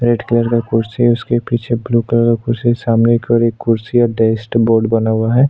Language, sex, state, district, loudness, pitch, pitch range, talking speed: Hindi, male, Maharashtra, Aurangabad, -14 LUFS, 115 Hz, 115-120 Hz, 205 wpm